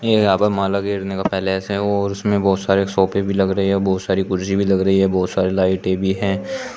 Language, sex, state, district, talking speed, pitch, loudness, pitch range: Hindi, male, Uttar Pradesh, Shamli, 250 wpm, 95 Hz, -18 LUFS, 95-100 Hz